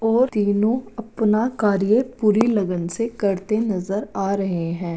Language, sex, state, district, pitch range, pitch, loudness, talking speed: Hindi, female, Bihar, Madhepura, 195-230 Hz, 215 Hz, -21 LUFS, 145 wpm